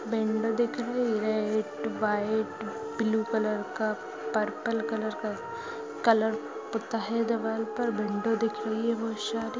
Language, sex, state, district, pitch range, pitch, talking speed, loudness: Hindi, female, Uttar Pradesh, Deoria, 215-230 Hz, 220 Hz, 135 wpm, -30 LUFS